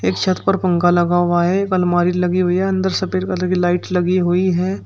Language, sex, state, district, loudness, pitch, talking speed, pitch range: Hindi, male, Uttar Pradesh, Shamli, -17 LUFS, 180 Hz, 235 wpm, 175-185 Hz